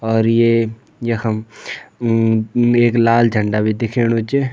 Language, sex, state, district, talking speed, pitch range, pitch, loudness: Garhwali, male, Uttarakhand, Tehri Garhwal, 130 wpm, 110-120 Hz, 115 Hz, -16 LUFS